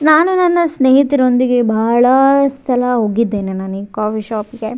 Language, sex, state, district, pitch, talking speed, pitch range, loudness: Kannada, female, Karnataka, Raichur, 245 Hz, 140 wpm, 220-275 Hz, -14 LUFS